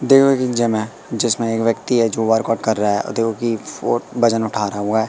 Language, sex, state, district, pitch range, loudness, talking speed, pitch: Hindi, male, Madhya Pradesh, Katni, 110-120 Hz, -18 LUFS, 235 wpm, 115 Hz